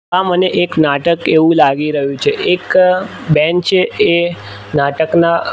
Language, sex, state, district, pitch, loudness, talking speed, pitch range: Gujarati, male, Gujarat, Gandhinagar, 170 Hz, -13 LUFS, 140 wpm, 150-180 Hz